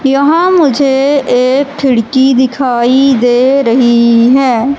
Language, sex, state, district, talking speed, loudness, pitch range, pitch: Hindi, female, Madhya Pradesh, Katni, 100 wpm, -9 LUFS, 245-275 Hz, 265 Hz